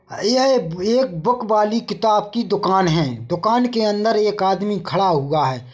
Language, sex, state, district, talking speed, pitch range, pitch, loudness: Hindi, male, Chhattisgarh, Bilaspur, 190 wpm, 175-225 Hz, 205 Hz, -19 LUFS